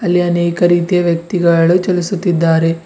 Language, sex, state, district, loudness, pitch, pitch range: Kannada, male, Karnataka, Bidar, -13 LUFS, 175 Hz, 170-180 Hz